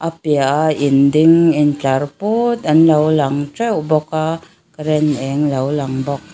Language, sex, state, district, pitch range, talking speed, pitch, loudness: Mizo, female, Mizoram, Aizawl, 140-160 Hz, 160 wpm, 150 Hz, -15 LUFS